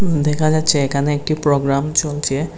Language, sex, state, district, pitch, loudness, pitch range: Bengali, male, Tripura, West Tripura, 150 Hz, -17 LUFS, 140-155 Hz